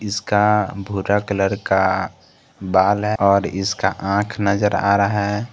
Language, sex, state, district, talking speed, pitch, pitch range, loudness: Hindi, male, Jharkhand, Garhwa, 140 wpm, 100 Hz, 95-105 Hz, -19 LUFS